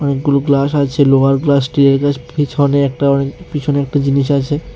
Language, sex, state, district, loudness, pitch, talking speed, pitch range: Bengali, male, Tripura, West Tripura, -14 LUFS, 140 Hz, 175 wpm, 140-145 Hz